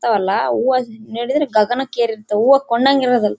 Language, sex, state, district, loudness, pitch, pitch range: Kannada, female, Karnataka, Bellary, -16 LUFS, 240 Hz, 220-265 Hz